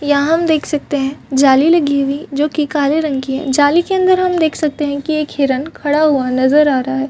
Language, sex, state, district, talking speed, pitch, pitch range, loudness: Hindi, female, Chhattisgarh, Bastar, 245 wpm, 290 Hz, 275-310 Hz, -14 LUFS